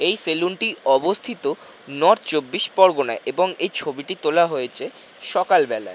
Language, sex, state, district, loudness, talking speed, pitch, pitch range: Bengali, male, West Bengal, North 24 Parganas, -21 LUFS, 130 wpm, 175 Hz, 145-190 Hz